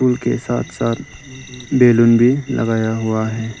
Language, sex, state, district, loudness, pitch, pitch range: Hindi, male, Arunachal Pradesh, Lower Dibang Valley, -16 LUFS, 120 Hz, 115-125 Hz